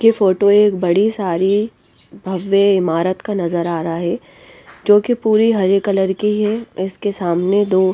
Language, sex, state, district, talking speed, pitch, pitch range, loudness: Hindi, female, Bihar, West Champaran, 165 wpm, 195 Hz, 185-210 Hz, -16 LUFS